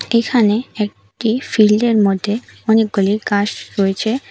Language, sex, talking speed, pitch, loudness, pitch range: Bengali, female, 95 wpm, 215 Hz, -16 LUFS, 205-230 Hz